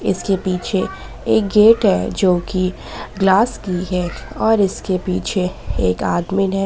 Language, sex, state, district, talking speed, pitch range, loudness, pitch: Hindi, female, Jharkhand, Ranchi, 145 wpm, 180-195 Hz, -18 LUFS, 190 Hz